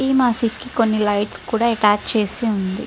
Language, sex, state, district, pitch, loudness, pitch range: Telugu, female, Andhra Pradesh, Srikakulam, 225 Hz, -19 LUFS, 205-235 Hz